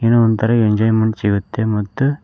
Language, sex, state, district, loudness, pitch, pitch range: Kannada, male, Karnataka, Koppal, -16 LUFS, 110 Hz, 105-115 Hz